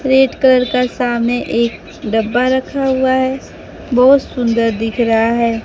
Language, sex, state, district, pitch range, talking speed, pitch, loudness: Hindi, female, Bihar, Kaimur, 235-260 Hz, 150 wpm, 250 Hz, -14 LUFS